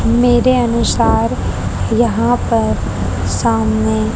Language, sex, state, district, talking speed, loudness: Hindi, female, Haryana, Charkhi Dadri, 70 wpm, -15 LUFS